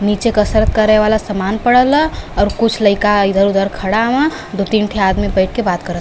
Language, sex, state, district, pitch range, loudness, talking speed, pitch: Bhojpuri, female, Uttar Pradesh, Varanasi, 200-220 Hz, -14 LUFS, 230 wpm, 210 Hz